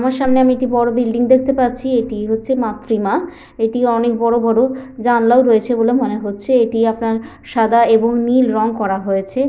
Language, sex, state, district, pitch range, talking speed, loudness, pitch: Bengali, female, West Bengal, Paschim Medinipur, 225-255 Hz, 195 wpm, -15 LUFS, 235 Hz